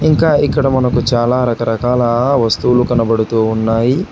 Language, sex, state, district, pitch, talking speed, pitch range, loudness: Telugu, male, Telangana, Hyderabad, 120 Hz, 115 wpm, 115-130 Hz, -14 LUFS